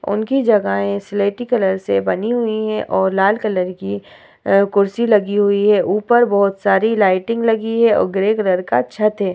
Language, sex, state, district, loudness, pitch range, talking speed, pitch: Hindi, female, Bihar, Vaishali, -16 LUFS, 190-220 Hz, 190 wpm, 200 Hz